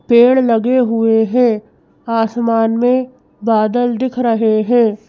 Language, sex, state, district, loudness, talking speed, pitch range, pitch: Hindi, female, Madhya Pradesh, Bhopal, -14 LUFS, 120 wpm, 225-245 Hz, 230 Hz